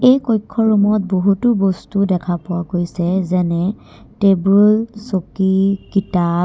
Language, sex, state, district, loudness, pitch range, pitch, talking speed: Assamese, female, Assam, Kamrup Metropolitan, -16 LUFS, 180-210 Hz, 195 Hz, 120 wpm